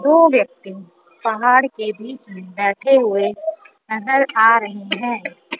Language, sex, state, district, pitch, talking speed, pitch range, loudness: Hindi, female, Punjab, Kapurthala, 225 Hz, 130 wpm, 205-265 Hz, -17 LUFS